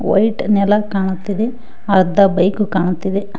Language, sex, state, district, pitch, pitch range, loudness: Kannada, female, Karnataka, Koppal, 200 Hz, 190-210 Hz, -16 LUFS